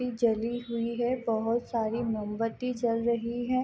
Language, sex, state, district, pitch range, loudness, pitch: Hindi, female, Bihar, East Champaran, 230-240 Hz, -30 LUFS, 235 Hz